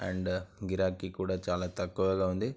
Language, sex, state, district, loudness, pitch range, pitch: Telugu, male, Andhra Pradesh, Anantapur, -33 LUFS, 90-95 Hz, 95 Hz